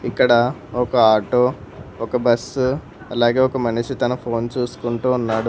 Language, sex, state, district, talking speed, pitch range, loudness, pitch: Telugu, male, Telangana, Hyderabad, 130 wpm, 115-125 Hz, -19 LUFS, 120 Hz